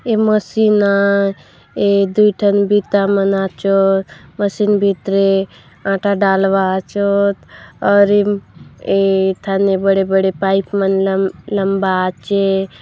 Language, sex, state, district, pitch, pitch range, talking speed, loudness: Halbi, female, Chhattisgarh, Bastar, 195 Hz, 195-200 Hz, 100 wpm, -15 LUFS